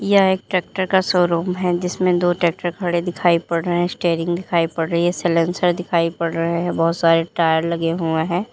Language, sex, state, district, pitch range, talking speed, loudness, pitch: Hindi, female, Uttar Pradesh, Lalitpur, 165-180 Hz, 210 wpm, -19 LUFS, 175 Hz